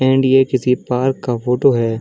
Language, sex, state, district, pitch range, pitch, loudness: Hindi, male, Chhattisgarh, Bilaspur, 125-130 Hz, 125 Hz, -16 LUFS